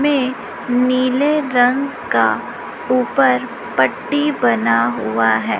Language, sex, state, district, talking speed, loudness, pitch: Hindi, female, Chhattisgarh, Raipur, 95 wpm, -17 LUFS, 255 Hz